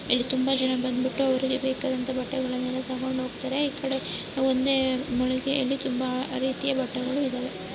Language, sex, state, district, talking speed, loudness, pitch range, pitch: Kannada, female, Karnataka, Dakshina Kannada, 125 wpm, -27 LUFS, 255-265 Hz, 260 Hz